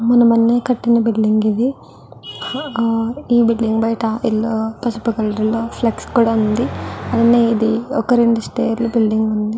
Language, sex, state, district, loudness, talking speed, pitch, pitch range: Telugu, female, Andhra Pradesh, Guntur, -17 LUFS, 140 wpm, 230 Hz, 220-235 Hz